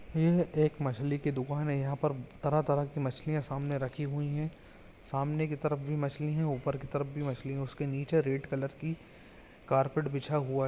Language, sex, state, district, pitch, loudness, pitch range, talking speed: Hindi, male, Chhattisgarh, Bilaspur, 145 Hz, -33 LUFS, 135-150 Hz, 210 wpm